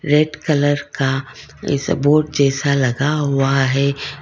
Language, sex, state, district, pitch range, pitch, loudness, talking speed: Hindi, female, Karnataka, Bangalore, 135-150 Hz, 145 Hz, -17 LUFS, 115 wpm